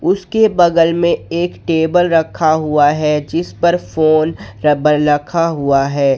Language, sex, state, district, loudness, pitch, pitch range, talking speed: Hindi, male, Jharkhand, Ranchi, -14 LUFS, 160 Hz, 150-170 Hz, 145 wpm